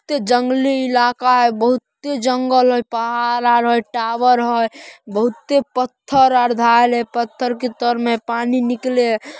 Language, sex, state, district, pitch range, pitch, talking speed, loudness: Magahi, female, Bihar, Samastipur, 235-255 Hz, 245 Hz, 155 wpm, -17 LUFS